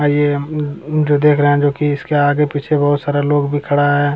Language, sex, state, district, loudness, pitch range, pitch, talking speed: Hindi, male, Bihar, Jamui, -15 LUFS, 145-150 Hz, 145 Hz, 275 wpm